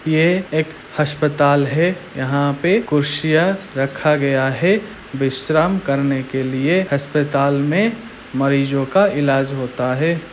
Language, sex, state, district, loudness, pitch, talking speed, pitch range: Hindi, male, Chhattisgarh, Raigarh, -18 LUFS, 145 Hz, 120 wpm, 140-170 Hz